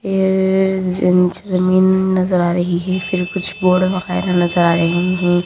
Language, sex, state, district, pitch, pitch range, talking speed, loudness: Hindi, female, Haryana, Rohtak, 185 Hz, 175-190 Hz, 165 wpm, -16 LUFS